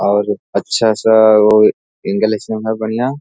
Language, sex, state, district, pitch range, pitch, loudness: Hindi, male, Bihar, Jahanabad, 105-110 Hz, 110 Hz, -14 LUFS